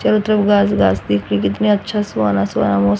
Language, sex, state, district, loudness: Hindi, female, Haryana, Rohtak, -16 LUFS